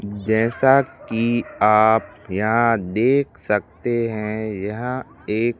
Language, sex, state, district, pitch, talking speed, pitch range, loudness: Hindi, male, Madhya Pradesh, Bhopal, 110 Hz, 95 wpm, 105-120 Hz, -20 LUFS